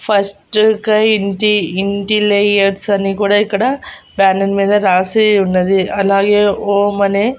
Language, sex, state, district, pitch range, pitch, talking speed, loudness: Telugu, female, Andhra Pradesh, Annamaya, 195-210 Hz, 200 Hz, 120 wpm, -13 LUFS